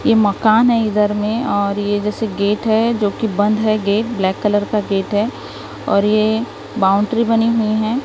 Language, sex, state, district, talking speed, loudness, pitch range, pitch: Hindi, female, Maharashtra, Gondia, 195 wpm, -16 LUFS, 205-225 Hz, 215 Hz